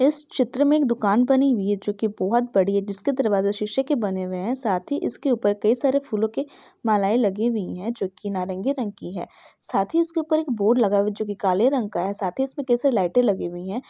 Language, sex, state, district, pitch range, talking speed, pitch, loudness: Hindi, female, Bihar, Jahanabad, 200-270 Hz, 265 wpm, 225 Hz, -23 LUFS